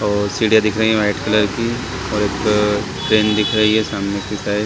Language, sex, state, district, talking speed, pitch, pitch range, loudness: Hindi, male, Chhattisgarh, Raigarh, 230 wpm, 105 Hz, 105-110 Hz, -17 LUFS